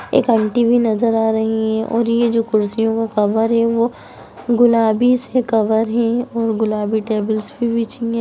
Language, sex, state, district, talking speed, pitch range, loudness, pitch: Hindi, female, Bihar, Sitamarhi, 170 wpm, 220-235 Hz, -17 LUFS, 225 Hz